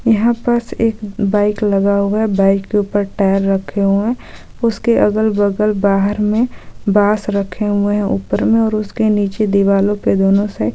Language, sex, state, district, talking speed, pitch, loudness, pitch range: Hindi, female, Jharkhand, Sahebganj, 180 wpm, 205 Hz, -15 LUFS, 200-220 Hz